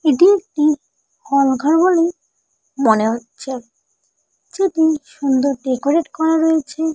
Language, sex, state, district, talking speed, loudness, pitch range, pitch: Bengali, female, West Bengal, Jalpaiguri, 105 wpm, -17 LUFS, 270-320 Hz, 300 Hz